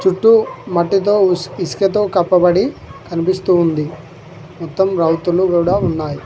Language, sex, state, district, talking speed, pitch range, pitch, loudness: Telugu, male, Telangana, Mahabubabad, 105 wpm, 165-190 Hz, 180 Hz, -15 LUFS